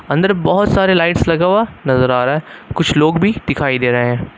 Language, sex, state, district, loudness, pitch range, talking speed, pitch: Hindi, male, Uttar Pradesh, Lucknow, -14 LUFS, 130-190 Hz, 235 wpm, 160 Hz